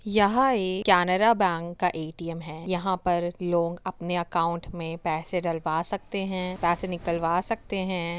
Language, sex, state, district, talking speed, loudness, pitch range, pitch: Hindi, female, Uttar Pradesh, Jyotiba Phule Nagar, 155 wpm, -26 LUFS, 170-190 Hz, 175 Hz